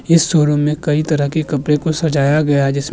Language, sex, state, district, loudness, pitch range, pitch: Hindi, male, Uttar Pradesh, Jyotiba Phule Nagar, -15 LUFS, 145-155 Hz, 150 Hz